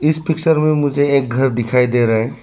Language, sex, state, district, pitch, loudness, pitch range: Hindi, male, Arunachal Pradesh, Lower Dibang Valley, 140 Hz, -15 LUFS, 125-155 Hz